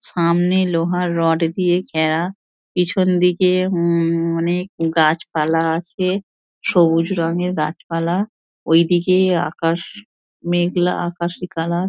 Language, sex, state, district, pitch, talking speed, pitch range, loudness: Bengali, female, West Bengal, Dakshin Dinajpur, 175 Hz, 100 wpm, 165-180 Hz, -18 LUFS